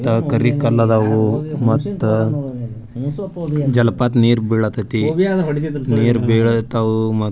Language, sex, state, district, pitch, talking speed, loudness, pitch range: Kannada, male, Karnataka, Bijapur, 115 Hz, 55 wpm, -17 LUFS, 110-140 Hz